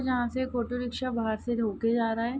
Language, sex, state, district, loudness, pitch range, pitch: Hindi, female, Bihar, Darbhanga, -29 LUFS, 230-250 Hz, 240 Hz